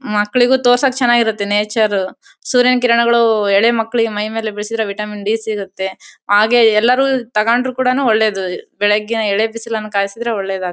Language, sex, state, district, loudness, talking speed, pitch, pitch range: Kannada, female, Karnataka, Bellary, -15 LUFS, 145 wpm, 220 Hz, 210-240 Hz